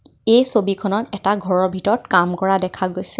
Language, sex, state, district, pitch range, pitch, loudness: Assamese, female, Assam, Kamrup Metropolitan, 185-210 Hz, 195 Hz, -18 LUFS